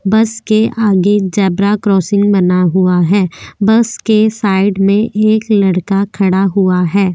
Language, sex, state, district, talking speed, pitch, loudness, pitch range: Hindi, female, Goa, North and South Goa, 145 wpm, 200 Hz, -12 LUFS, 190-215 Hz